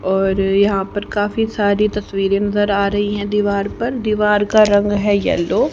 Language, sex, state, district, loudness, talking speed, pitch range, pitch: Hindi, female, Haryana, Rohtak, -17 LUFS, 180 wpm, 200-210 Hz, 205 Hz